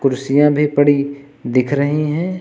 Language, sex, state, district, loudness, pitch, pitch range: Hindi, male, Uttar Pradesh, Lucknow, -16 LUFS, 145 Hz, 140-150 Hz